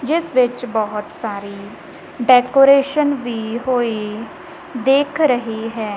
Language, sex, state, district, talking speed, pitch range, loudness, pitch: Punjabi, female, Punjab, Kapurthala, 100 wpm, 220-275 Hz, -17 LUFS, 245 Hz